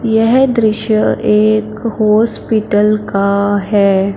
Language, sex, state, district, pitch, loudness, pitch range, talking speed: Hindi, female, Punjab, Fazilka, 215 Hz, -13 LUFS, 205-220 Hz, 85 wpm